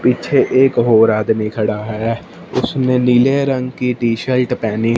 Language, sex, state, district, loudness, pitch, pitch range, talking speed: Hindi, male, Punjab, Fazilka, -15 LUFS, 120 Hz, 110-125 Hz, 155 wpm